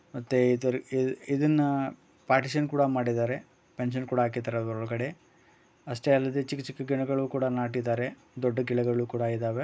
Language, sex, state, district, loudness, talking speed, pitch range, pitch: Kannada, male, Karnataka, Bellary, -29 LUFS, 120 wpm, 120-140 Hz, 130 Hz